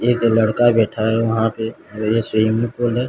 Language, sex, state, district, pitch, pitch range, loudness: Hindi, male, Odisha, Sambalpur, 115 Hz, 110-120 Hz, -18 LUFS